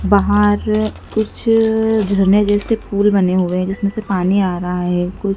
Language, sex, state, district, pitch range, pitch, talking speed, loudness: Hindi, female, Madhya Pradesh, Dhar, 190-215 Hz, 200 Hz, 165 wpm, -16 LUFS